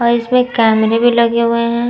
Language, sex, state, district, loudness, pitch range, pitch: Hindi, female, Uttar Pradesh, Muzaffarnagar, -13 LUFS, 230-240 Hz, 235 Hz